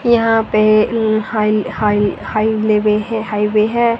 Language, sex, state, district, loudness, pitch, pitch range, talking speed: Hindi, female, Haryana, Rohtak, -15 LUFS, 215 Hz, 215-225 Hz, 135 wpm